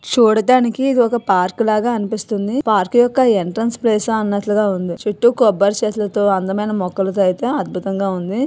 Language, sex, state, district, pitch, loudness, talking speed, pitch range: Telugu, female, Andhra Pradesh, Visakhapatnam, 215 Hz, -16 LUFS, 140 wpm, 195-235 Hz